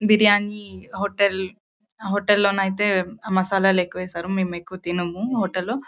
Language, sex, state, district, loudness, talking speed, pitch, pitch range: Telugu, female, Karnataka, Bellary, -22 LUFS, 120 wpm, 195 Hz, 185-210 Hz